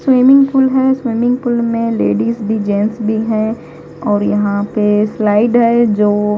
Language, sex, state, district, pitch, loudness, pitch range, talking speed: Hindi, female, Punjab, Kapurthala, 220 Hz, -13 LUFS, 210-240 Hz, 160 wpm